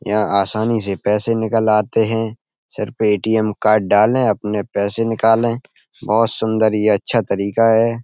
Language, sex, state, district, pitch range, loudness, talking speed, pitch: Hindi, male, Uttar Pradesh, Etah, 105-115 Hz, -17 LUFS, 150 wpm, 110 Hz